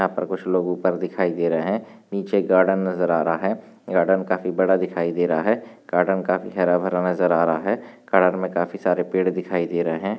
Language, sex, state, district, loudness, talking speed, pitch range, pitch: Hindi, male, Maharashtra, Nagpur, -22 LUFS, 230 wpm, 90-95 Hz, 90 Hz